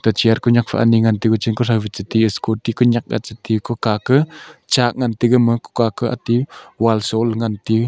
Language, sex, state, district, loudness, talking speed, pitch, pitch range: Wancho, male, Arunachal Pradesh, Longding, -17 LUFS, 235 wpm, 115 Hz, 110-120 Hz